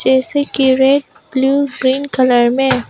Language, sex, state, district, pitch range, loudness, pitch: Hindi, female, Arunachal Pradesh, Papum Pare, 260-280 Hz, -14 LUFS, 265 Hz